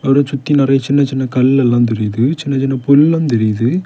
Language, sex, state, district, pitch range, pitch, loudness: Tamil, male, Tamil Nadu, Kanyakumari, 120-140 Hz, 135 Hz, -13 LUFS